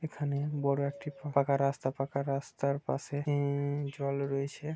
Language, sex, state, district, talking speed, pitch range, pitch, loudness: Bengali, male, West Bengal, Purulia, 140 wpm, 140-145 Hz, 140 Hz, -33 LUFS